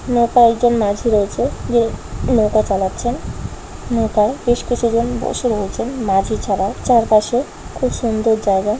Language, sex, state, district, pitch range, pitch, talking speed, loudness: Bengali, female, West Bengal, Malda, 210-240 Hz, 230 Hz, 115 wpm, -17 LUFS